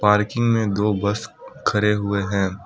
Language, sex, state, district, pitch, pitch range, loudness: Hindi, male, Assam, Kamrup Metropolitan, 105 Hz, 100-105 Hz, -21 LUFS